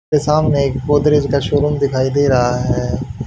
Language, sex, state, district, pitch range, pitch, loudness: Hindi, male, Haryana, Rohtak, 135-150 Hz, 140 Hz, -15 LUFS